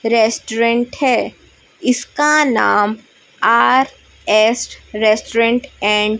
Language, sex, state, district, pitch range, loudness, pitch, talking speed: Hindi, female, Chhattisgarh, Raipur, 215-250 Hz, -15 LUFS, 230 Hz, 85 wpm